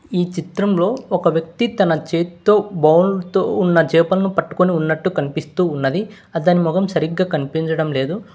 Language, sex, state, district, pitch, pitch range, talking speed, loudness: Telugu, male, Telangana, Hyderabad, 175 Hz, 160-190 Hz, 135 wpm, -18 LUFS